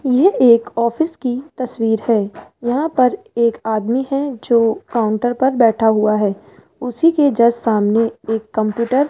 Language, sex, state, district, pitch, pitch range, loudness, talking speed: Hindi, female, Rajasthan, Jaipur, 235 Hz, 225-260 Hz, -16 LUFS, 160 wpm